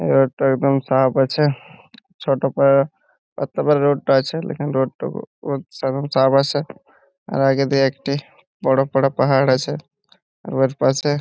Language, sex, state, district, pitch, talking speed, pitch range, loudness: Bengali, male, West Bengal, Purulia, 140 Hz, 160 wpm, 135-145 Hz, -19 LUFS